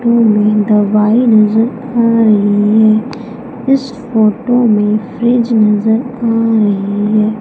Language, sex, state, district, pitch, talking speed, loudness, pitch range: Hindi, female, Madhya Pradesh, Umaria, 220 Hz, 120 wpm, -11 LUFS, 210-240 Hz